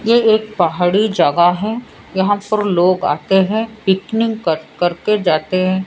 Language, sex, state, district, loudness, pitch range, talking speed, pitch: Hindi, female, Odisha, Sambalpur, -16 LUFS, 175-215 Hz, 155 wpm, 190 Hz